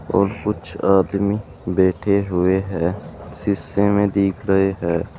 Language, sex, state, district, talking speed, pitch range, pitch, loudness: Hindi, male, Uttar Pradesh, Saharanpur, 125 wpm, 90-100 Hz, 95 Hz, -20 LUFS